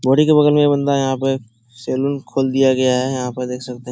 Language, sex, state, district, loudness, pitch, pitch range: Hindi, male, Bihar, Jahanabad, -17 LUFS, 130 Hz, 125-140 Hz